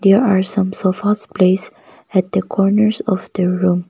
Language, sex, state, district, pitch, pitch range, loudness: English, female, Nagaland, Kohima, 195 Hz, 185-210 Hz, -16 LUFS